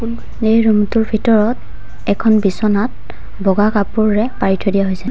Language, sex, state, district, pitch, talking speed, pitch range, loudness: Assamese, female, Assam, Sonitpur, 215 Hz, 140 wpm, 200-225 Hz, -15 LUFS